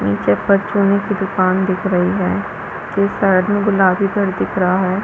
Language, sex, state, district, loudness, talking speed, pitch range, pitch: Hindi, female, Chhattisgarh, Balrampur, -16 LUFS, 190 wpm, 185-200 Hz, 190 Hz